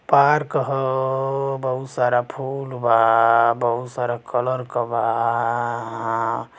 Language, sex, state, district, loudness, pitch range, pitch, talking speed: Bhojpuri, male, Uttar Pradesh, Gorakhpur, -21 LUFS, 115-135 Hz, 125 Hz, 120 wpm